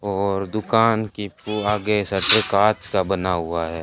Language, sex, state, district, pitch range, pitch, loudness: Hindi, male, Rajasthan, Bikaner, 95-105 Hz, 100 Hz, -20 LUFS